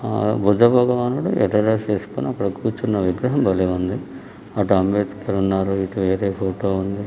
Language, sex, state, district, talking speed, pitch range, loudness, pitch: Telugu, male, Telangana, Karimnagar, 145 wpm, 95-110 Hz, -20 LUFS, 100 Hz